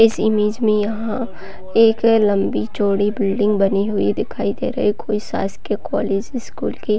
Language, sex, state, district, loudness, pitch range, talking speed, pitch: Hindi, female, Chhattisgarh, Raigarh, -19 LUFS, 200-225 Hz, 155 wpm, 210 Hz